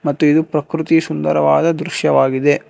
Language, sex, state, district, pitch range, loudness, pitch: Kannada, male, Karnataka, Bangalore, 135-160 Hz, -15 LUFS, 150 Hz